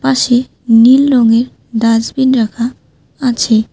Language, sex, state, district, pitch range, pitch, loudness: Bengali, female, West Bengal, Alipurduar, 230-260 Hz, 240 Hz, -11 LUFS